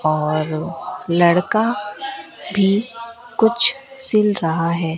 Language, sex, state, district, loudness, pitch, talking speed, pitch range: Hindi, female, Rajasthan, Bikaner, -18 LUFS, 205 Hz, 85 wpm, 165-230 Hz